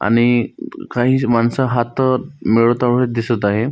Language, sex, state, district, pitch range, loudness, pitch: Marathi, male, Maharashtra, Solapur, 115-125 Hz, -17 LUFS, 120 Hz